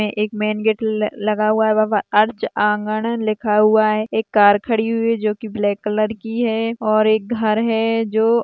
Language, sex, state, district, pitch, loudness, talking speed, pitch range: Hindi, female, Maharashtra, Aurangabad, 215 Hz, -18 LUFS, 200 wpm, 215-225 Hz